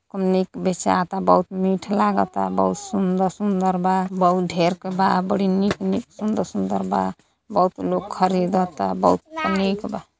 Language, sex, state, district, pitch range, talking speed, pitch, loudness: Hindi, female, Uttar Pradesh, Gorakhpur, 145-195 Hz, 135 wpm, 185 Hz, -21 LUFS